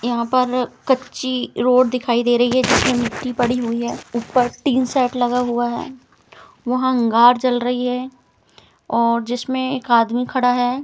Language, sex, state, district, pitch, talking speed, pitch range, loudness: Hindi, female, Chhattisgarh, Rajnandgaon, 250 Hz, 165 wpm, 240-255 Hz, -18 LUFS